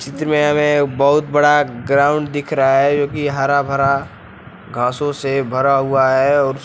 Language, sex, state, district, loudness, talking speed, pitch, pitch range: Hindi, male, Uttar Pradesh, Lucknow, -16 LUFS, 160 wpm, 140 Hz, 135-145 Hz